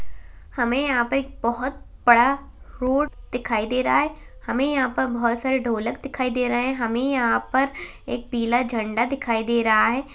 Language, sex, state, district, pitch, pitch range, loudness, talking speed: Hindi, female, Uttar Pradesh, Hamirpur, 245 Hz, 235-265 Hz, -23 LUFS, 185 wpm